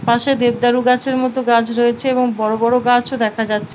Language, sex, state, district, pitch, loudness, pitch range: Bengali, female, West Bengal, Paschim Medinipur, 245 Hz, -16 LUFS, 230-250 Hz